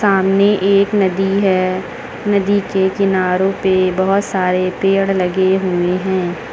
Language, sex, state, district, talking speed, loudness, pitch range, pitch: Hindi, female, Uttar Pradesh, Lucknow, 130 wpm, -15 LUFS, 185-195 Hz, 190 Hz